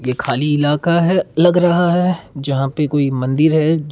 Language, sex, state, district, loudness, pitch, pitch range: Hindi, male, Karnataka, Bangalore, -16 LUFS, 150 Hz, 140-175 Hz